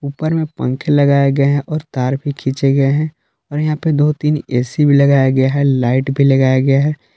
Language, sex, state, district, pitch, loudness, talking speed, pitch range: Hindi, male, Jharkhand, Palamu, 140 Hz, -15 LUFS, 225 wpm, 135-150 Hz